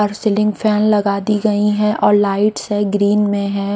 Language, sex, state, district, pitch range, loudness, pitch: Hindi, female, Odisha, Khordha, 205-210 Hz, -16 LUFS, 210 Hz